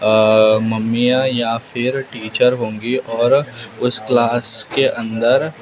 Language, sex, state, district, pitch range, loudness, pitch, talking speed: Hindi, male, Maharashtra, Mumbai Suburban, 110-125 Hz, -16 LUFS, 120 Hz, 115 wpm